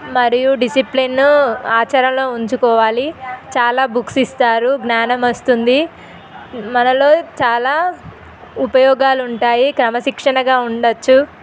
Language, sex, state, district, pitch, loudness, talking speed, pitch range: Telugu, female, Telangana, Nalgonda, 255 Hz, -14 LUFS, 80 wpm, 240-265 Hz